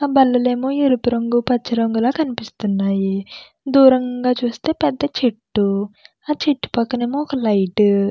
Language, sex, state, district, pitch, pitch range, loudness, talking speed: Telugu, female, Andhra Pradesh, Krishna, 245 Hz, 215-270 Hz, -18 LUFS, 135 wpm